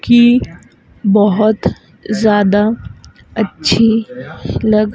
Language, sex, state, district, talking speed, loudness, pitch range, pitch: Hindi, female, Madhya Pradesh, Dhar, 60 wpm, -13 LUFS, 200-225 Hz, 215 Hz